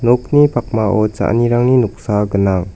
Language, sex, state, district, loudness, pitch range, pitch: Garo, male, Meghalaya, West Garo Hills, -14 LUFS, 105-120 Hz, 115 Hz